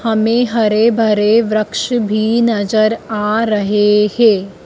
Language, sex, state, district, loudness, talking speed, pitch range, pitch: Hindi, female, Madhya Pradesh, Dhar, -14 LUFS, 115 wpm, 210-230 Hz, 215 Hz